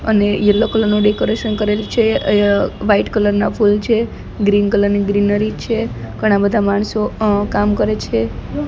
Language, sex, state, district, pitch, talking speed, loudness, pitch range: Gujarati, female, Gujarat, Gandhinagar, 210 Hz, 180 wpm, -16 LUFS, 205-215 Hz